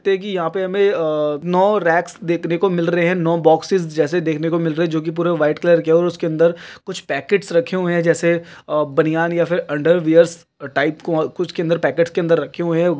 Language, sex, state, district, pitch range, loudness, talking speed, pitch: Hindi, male, Chhattisgarh, Kabirdham, 165-175 Hz, -18 LUFS, 240 wpm, 170 Hz